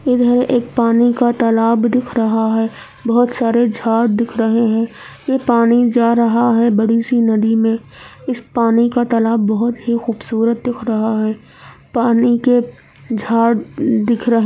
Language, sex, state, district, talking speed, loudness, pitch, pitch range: Hindi, female, Andhra Pradesh, Anantapur, 160 wpm, -15 LUFS, 235 Hz, 225-240 Hz